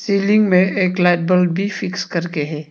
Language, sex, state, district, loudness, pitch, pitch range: Hindi, male, Arunachal Pradesh, Papum Pare, -17 LUFS, 180 Hz, 175-195 Hz